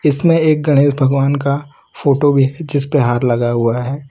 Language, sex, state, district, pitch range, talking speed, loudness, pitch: Hindi, male, Gujarat, Valsad, 135-145 Hz, 205 wpm, -15 LUFS, 140 Hz